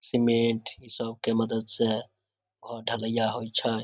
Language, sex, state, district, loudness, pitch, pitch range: Maithili, male, Bihar, Samastipur, -28 LUFS, 115 Hz, 110-115 Hz